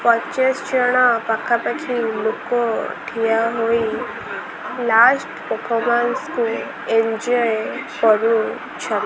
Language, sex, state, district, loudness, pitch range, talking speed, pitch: Odia, female, Odisha, Khordha, -19 LUFS, 225-245 Hz, 80 wpm, 230 Hz